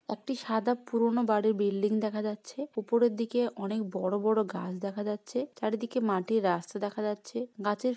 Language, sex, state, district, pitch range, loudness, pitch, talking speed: Bengali, female, West Bengal, Jhargram, 205-235 Hz, -31 LUFS, 215 Hz, 150 wpm